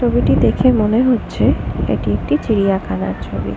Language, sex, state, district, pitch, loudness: Bengali, female, West Bengal, Kolkata, 145 Hz, -16 LUFS